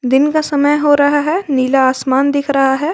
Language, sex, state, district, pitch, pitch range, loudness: Hindi, female, Jharkhand, Garhwa, 285 Hz, 265-295 Hz, -13 LUFS